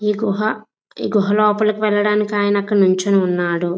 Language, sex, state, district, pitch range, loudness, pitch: Telugu, female, Andhra Pradesh, Visakhapatnam, 195-210 Hz, -17 LUFS, 205 Hz